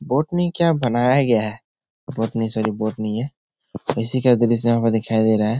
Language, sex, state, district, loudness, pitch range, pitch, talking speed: Hindi, male, Bihar, Supaul, -20 LUFS, 110-130 Hz, 115 Hz, 190 wpm